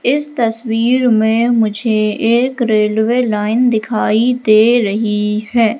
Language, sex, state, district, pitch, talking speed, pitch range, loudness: Hindi, female, Madhya Pradesh, Katni, 225 Hz, 115 wpm, 215-240 Hz, -14 LUFS